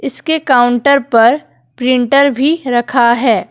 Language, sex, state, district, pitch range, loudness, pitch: Hindi, female, Jharkhand, Deoghar, 240-280 Hz, -12 LUFS, 255 Hz